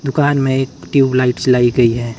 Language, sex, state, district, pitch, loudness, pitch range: Hindi, male, Himachal Pradesh, Shimla, 130 Hz, -14 LUFS, 120-135 Hz